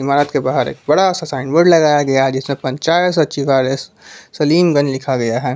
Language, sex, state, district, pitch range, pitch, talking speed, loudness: Hindi, male, Jharkhand, Palamu, 130-160 Hz, 140 Hz, 185 wpm, -15 LUFS